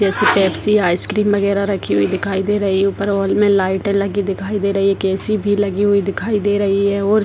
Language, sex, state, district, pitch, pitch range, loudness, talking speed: Hindi, female, Bihar, Purnia, 200 Hz, 195-205 Hz, -16 LUFS, 250 wpm